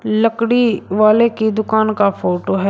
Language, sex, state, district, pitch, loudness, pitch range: Hindi, male, Uttar Pradesh, Shamli, 220 Hz, -15 LUFS, 200-225 Hz